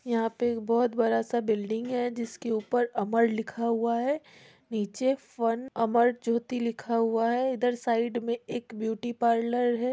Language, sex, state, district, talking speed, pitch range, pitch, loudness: Hindi, female, Bihar, Muzaffarpur, 155 wpm, 230-245 Hz, 235 Hz, -28 LUFS